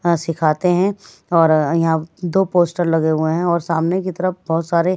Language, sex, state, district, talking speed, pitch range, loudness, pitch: Hindi, male, Bihar, West Champaran, 195 wpm, 165-180 Hz, -18 LUFS, 170 Hz